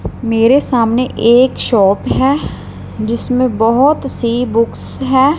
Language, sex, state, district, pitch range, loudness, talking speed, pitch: Hindi, female, Punjab, Fazilka, 230-265 Hz, -13 LUFS, 110 wpm, 245 Hz